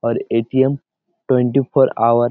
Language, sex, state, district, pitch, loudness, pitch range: Bengali, male, West Bengal, Malda, 130 Hz, -17 LUFS, 120-135 Hz